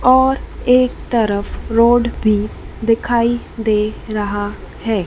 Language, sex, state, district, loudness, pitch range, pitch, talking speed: Hindi, female, Madhya Pradesh, Dhar, -17 LUFS, 210-240 Hz, 230 Hz, 105 wpm